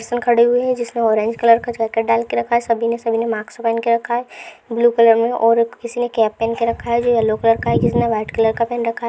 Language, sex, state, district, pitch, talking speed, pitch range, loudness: Hindi, female, Uttar Pradesh, Deoria, 230 Hz, 305 wpm, 225-235 Hz, -17 LUFS